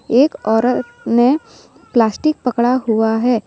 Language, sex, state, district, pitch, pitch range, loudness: Hindi, female, Jharkhand, Deoghar, 240 Hz, 225-260 Hz, -16 LUFS